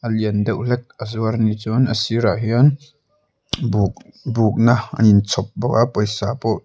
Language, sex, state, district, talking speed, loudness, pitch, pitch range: Mizo, male, Mizoram, Aizawl, 200 wpm, -18 LUFS, 115 Hz, 110-120 Hz